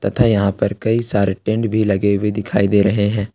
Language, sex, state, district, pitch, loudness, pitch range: Hindi, male, Jharkhand, Ranchi, 105 Hz, -17 LUFS, 100-110 Hz